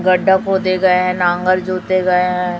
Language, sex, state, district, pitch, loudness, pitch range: Hindi, male, Chhattisgarh, Raipur, 185 Hz, -15 LUFS, 180-185 Hz